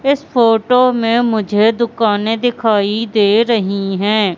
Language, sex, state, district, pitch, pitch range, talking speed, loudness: Hindi, female, Madhya Pradesh, Katni, 225 Hz, 210-235 Hz, 125 wpm, -14 LUFS